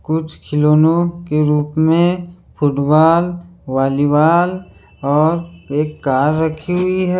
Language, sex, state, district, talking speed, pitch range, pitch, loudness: Hindi, male, Madhya Pradesh, Bhopal, 110 wpm, 150-175 Hz, 155 Hz, -16 LUFS